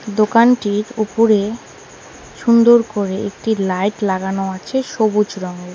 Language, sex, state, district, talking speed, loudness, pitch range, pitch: Bengali, female, West Bengal, Alipurduar, 105 wpm, -16 LUFS, 195-225 Hz, 210 Hz